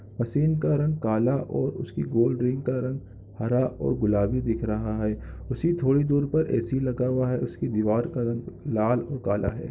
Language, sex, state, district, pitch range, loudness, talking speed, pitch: Hindi, male, Chhattisgarh, Raigarh, 110-135 Hz, -26 LUFS, 205 wpm, 125 Hz